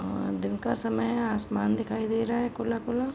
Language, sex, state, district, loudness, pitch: Hindi, female, Uttar Pradesh, Gorakhpur, -29 LUFS, 220 Hz